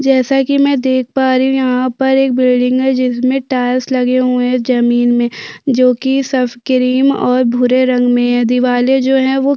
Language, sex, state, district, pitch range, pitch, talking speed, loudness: Hindi, female, Chhattisgarh, Sukma, 250-265 Hz, 255 Hz, 200 wpm, -13 LUFS